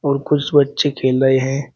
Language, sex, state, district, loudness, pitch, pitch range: Hindi, male, Uttar Pradesh, Shamli, -16 LUFS, 140 Hz, 135-145 Hz